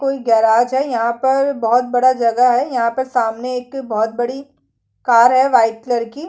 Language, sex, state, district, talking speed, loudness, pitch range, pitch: Hindi, female, Chhattisgarh, Kabirdham, 190 wpm, -16 LUFS, 230-265 Hz, 245 Hz